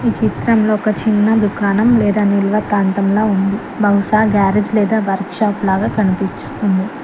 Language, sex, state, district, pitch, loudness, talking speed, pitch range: Telugu, female, Telangana, Mahabubabad, 205 Hz, -15 LUFS, 130 wpm, 200-215 Hz